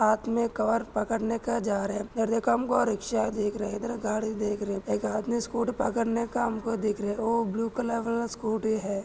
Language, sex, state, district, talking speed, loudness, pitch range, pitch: Hindi, male, Maharashtra, Sindhudurg, 145 wpm, -28 LUFS, 210-235 Hz, 225 Hz